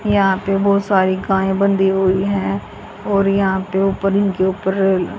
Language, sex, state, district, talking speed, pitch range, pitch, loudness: Hindi, female, Haryana, Jhajjar, 160 wpm, 190-195 Hz, 195 Hz, -17 LUFS